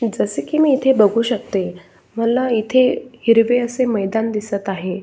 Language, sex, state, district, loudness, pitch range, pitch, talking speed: Marathi, male, Maharashtra, Solapur, -17 LUFS, 200-245 Hz, 230 Hz, 155 wpm